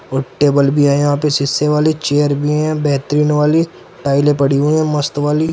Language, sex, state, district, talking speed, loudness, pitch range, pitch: Hindi, male, Uttar Pradesh, Saharanpur, 205 wpm, -15 LUFS, 140-150 Hz, 145 Hz